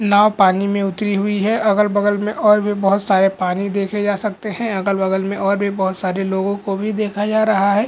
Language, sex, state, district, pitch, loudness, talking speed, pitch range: Hindi, male, Bihar, Lakhisarai, 200 Hz, -17 LUFS, 230 wpm, 195-210 Hz